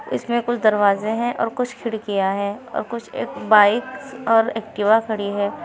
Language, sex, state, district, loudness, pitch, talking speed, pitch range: Hindi, female, Uttar Pradesh, Shamli, -20 LUFS, 225 Hz, 170 wpm, 205-235 Hz